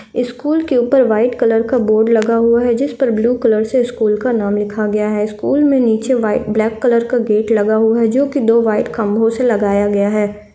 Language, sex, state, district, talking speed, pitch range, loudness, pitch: Hindi, female, Chhattisgarh, Korba, 225 wpm, 215-245 Hz, -14 LUFS, 225 Hz